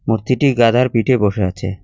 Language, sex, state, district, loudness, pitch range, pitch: Bengali, male, West Bengal, Cooch Behar, -15 LUFS, 95-130 Hz, 115 Hz